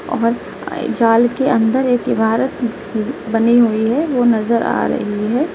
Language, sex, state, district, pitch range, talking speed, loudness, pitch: Hindi, female, Uttar Pradesh, Lalitpur, 225-250 Hz, 150 wpm, -16 LUFS, 235 Hz